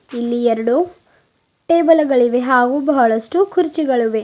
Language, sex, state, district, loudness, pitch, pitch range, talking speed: Kannada, female, Karnataka, Bidar, -16 LUFS, 255 Hz, 240-325 Hz, 85 wpm